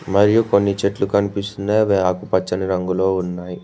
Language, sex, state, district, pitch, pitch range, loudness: Telugu, male, Telangana, Mahabubabad, 95 Hz, 90-100 Hz, -19 LUFS